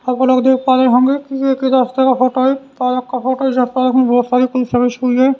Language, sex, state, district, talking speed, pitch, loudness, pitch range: Hindi, male, Haryana, Rohtak, 265 wpm, 255 Hz, -14 LUFS, 250-265 Hz